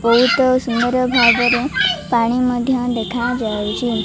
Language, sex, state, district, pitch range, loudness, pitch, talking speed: Odia, female, Odisha, Malkangiri, 235-255 Hz, -16 LUFS, 245 Hz, 90 wpm